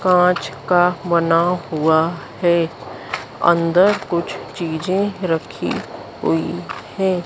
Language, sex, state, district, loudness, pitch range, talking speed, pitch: Hindi, female, Madhya Pradesh, Dhar, -19 LUFS, 165-185 Hz, 90 wpm, 175 Hz